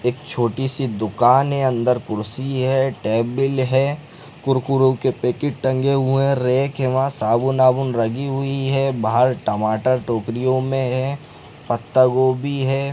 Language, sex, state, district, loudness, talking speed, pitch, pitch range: Hindi, male, Chhattisgarh, Sarguja, -19 LUFS, 150 wpm, 130 Hz, 125-135 Hz